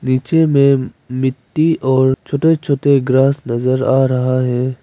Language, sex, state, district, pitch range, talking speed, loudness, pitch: Hindi, female, Arunachal Pradesh, Papum Pare, 130-140 Hz, 135 wpm, -15 LUFS, 130 Hz